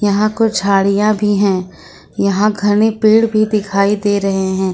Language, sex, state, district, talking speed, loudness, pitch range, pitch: Hindi, female, Jharkhand, Ranchi, 165 wpm, -14 LUFS, 195-215 Hz, 205 Hz